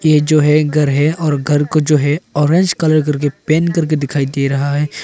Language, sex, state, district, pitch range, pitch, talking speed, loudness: Hindi, male, Arunachal Pradesh, Longding, 145-155 Hz, 150 Hz, 240 wpm, -14 LUFS